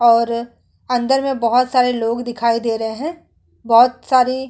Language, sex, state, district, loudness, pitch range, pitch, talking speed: Hindi, female, Uttar Pradesh, Muzaffarnagar, -17 LUFS, 235-255 Hz, 245 Hz, 175 wpm